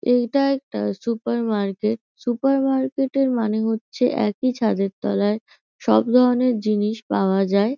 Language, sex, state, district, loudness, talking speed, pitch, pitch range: Bengali, female, West Bengal, North 24 Parganas, -21 LUFS, 115 wpm, 230 Hz, 210-255 Hz